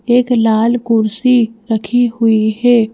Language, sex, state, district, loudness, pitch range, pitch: Hindi, female, Madhya Pradesh, Bhopal, -13 LUFS, 220-245 Hz, 230 Hz